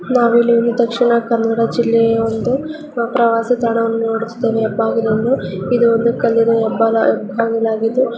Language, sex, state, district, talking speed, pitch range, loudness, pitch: Kannada, female, Karnataka, Dakshina Kannada, 110 wpm, 225-235 Hz, -15 LUFS, 230 Hz